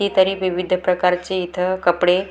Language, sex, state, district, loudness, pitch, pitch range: Marathi, female, Maharashtra, Gondia, -19 LUFS, 185 Hz, 180-185 Hz